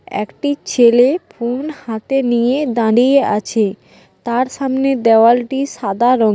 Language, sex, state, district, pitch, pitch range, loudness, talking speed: Bengali, female, West Bengal, Dakshin Dinajpur, 245 Hz, 230-270 Hz, -15 LUFS, 115 wpm